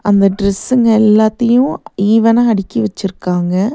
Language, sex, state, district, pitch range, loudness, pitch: Tamil, female, Tamil Nadu, Nilgiris, 195-230 Hz, -13 LUFS, 215 Hz